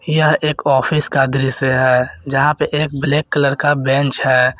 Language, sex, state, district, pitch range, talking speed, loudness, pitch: Hindi, male, Jharkhand, Garhwa, 135-150 Hz, 180 wpm, -15 LUFS, 140 Hz